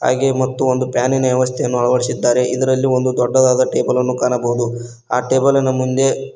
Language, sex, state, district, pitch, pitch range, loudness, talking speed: Kannada, male, Karnataka, Koppal, 130 Hz, 125-130 Hz, -16 LUFS, 150 wpm